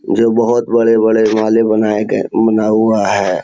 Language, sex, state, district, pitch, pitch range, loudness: Hindi, male, Bihar, Jamui, 110 Hz, 110-115 Hz, -13 LUFS